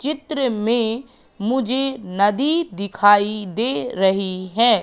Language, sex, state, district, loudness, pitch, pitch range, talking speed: Hindi, female, Madhya Pradesh, Katni, -20 LUFS, 225 Hz, 200-260 Hz, 100 wpm